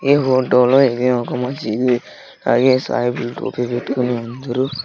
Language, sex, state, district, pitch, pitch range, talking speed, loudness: Telugu, male, Andhra Pradesh, Sri Satya Sai, 125 Hz, 120-130 Hz, 135 wpm, -18 LUFS